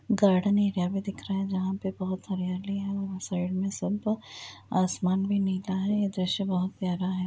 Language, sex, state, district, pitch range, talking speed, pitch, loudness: Hindi, female, Uttar Pradesh, Budaun, 185-200 Hz, 200 wpm, 190 Hz, -29 LUFS